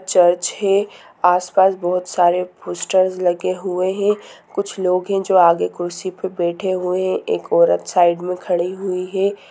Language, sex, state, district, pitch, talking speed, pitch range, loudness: Hindi, female, Bihar, Sitamarhi, 185 Hz, 165 wpm, 180-195 Hz, -18 LUFS